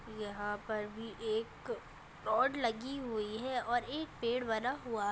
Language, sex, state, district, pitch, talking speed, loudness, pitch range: Hindi, female, Rajasthan, Nagaur, 230 Hz, 165 wpm, -37 LUFS, 215-250 Hz